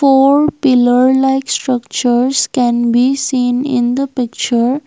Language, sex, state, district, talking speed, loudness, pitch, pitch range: English, female, Assam, Kamrup Metropolitan, 125 wpm, -13 LUFS, 255 Hz, 245-270 Hz